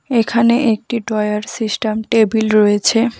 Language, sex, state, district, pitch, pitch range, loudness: Bengali, female, West Bengal, Alipurduar, 225 Hz, 215-235 Hz, -15 LUFS